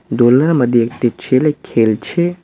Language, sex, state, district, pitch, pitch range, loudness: Bengali, male, West Bengal, Cooch Behar, 125 Hz, 120-150 Hz, -14 LUFS